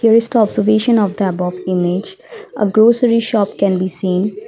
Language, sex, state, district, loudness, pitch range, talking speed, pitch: English, female, Assam, Kamrup Metropolitan, -15 LUFS, 185-230 Hz, 190 wpm, 210 Hz